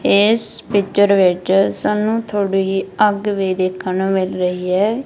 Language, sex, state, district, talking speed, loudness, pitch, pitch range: Punjabi, female, Punjab, Kapurthala, 140 wpm, -16 LUFS, 195 Hz, 185-205 Hz